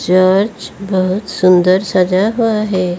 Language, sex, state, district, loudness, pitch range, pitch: Hindi, female, Odisha, Malkangiri, -13 LUFS, 185-205 Hz, 190 Hz